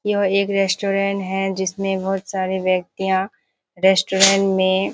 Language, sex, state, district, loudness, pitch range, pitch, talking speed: Hindi, female, Bihar, Kishanganj, -19 LUFS, 190-195 Hz, 195 Hz, 120 wpm